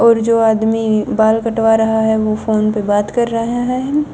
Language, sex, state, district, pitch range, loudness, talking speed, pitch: Hindi, female, Himachal Pradesh, Shimla, 220-230 Hz, -15 LUFS, 200 wpm, 225 Hz